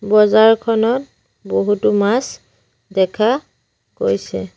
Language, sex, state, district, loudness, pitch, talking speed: Assamese, female, Assam, Sonitpur, -16 LUFS, 210 Hz, 65 wpm